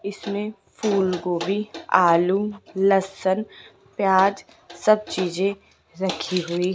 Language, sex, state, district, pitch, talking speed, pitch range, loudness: Hindi, female, Rajasthan, Jaipur, 195 Hz, 90 wpm, 180-200 Hz, -22 LUFS